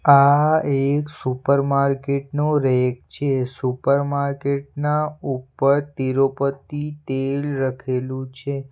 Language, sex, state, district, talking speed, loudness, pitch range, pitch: Gujarati, male, Gujarat, Valsad, 105 wpm, -21 LUFS, 135-145 Hz, 140 Hz